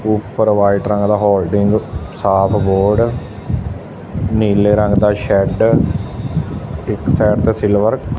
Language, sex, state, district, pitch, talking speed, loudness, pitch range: Punjabi, male, Punjab, Fazilka, 105 Hz, 115 wpm, -15 LUFS, 100-105 Hz